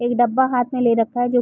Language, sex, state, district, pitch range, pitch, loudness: Hindi, female, Uttar Pradesh, Gorakhpur, 240-250 Hz, 245 Hz, -18 LUFS